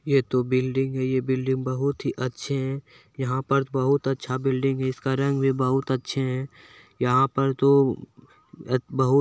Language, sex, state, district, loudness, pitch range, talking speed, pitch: Hindi, male, Bihar, Lakhisarai, -24 LUFS, 130-135 Hz, 155 wpm, 130 Hz